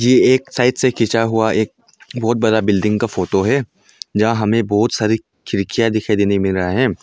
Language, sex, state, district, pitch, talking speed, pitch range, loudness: Hindi, male, Arunachal Pradesh, Longding, 110 Hz, 195 wpm, 105-115 Hz, -17 LUFS